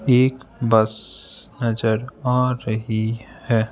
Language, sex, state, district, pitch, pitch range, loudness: Hindi, male, Madhya Pradesh, Bhopal, 115 Hz, 110-125 Hz, -22 LUFS